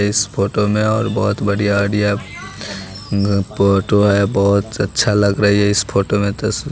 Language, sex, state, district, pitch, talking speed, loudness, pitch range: Hindi, male, Bihar, West Champaran, 100 Hz, 170 wpm, -16 LUFS, 100-105 Hz